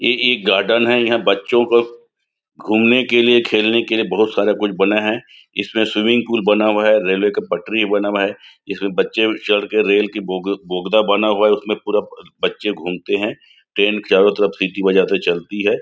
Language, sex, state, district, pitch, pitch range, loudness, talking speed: Hindi, male, Chhattisgarh, Raigarh, 105 Hz, 100-115 Hz, -16 LUFS, 210 wpm